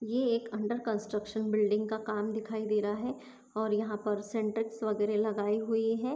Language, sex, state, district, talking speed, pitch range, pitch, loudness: Hindi, female, Maharashtra, Chandrapur, 185 wpm, 210-225 Hz, 220 Hz, -32 LUFS